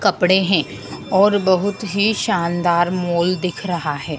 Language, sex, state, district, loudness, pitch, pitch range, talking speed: Hindi, female, Madhya Pradesh, Dhar, -18 LUFS, 185 Hz, 175-200 Hz, 145 wpm